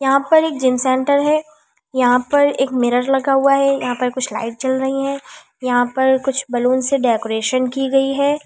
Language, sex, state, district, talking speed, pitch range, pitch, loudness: Hindi, female, Delhi, New Delhi, 205 wpm, 250-275 Hz, 265 Hz, -17 LUFS